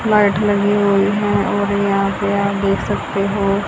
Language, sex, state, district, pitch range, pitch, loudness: Hindi, female, Haryana, Jhajjar, 200-205 Hz, 200 Hz, -17 LUFS